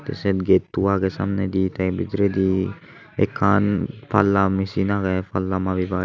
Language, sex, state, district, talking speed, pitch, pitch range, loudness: Chakma, male, Tripura, Unakoti, 130 wpm, 95 Hz, 95-100 Hz, -21 LUFS